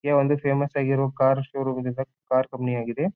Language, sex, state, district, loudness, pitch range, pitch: Kannada, male, Karnataka, Bijapur, -24 LUFS, 130-140 Hz, 135 Hz